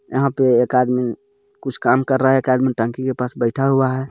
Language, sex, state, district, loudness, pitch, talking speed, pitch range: Hindi, male, Jharkhand, Garhwa, -18 LUFS, 130 Hz, 250 wpm, 125-135 Hz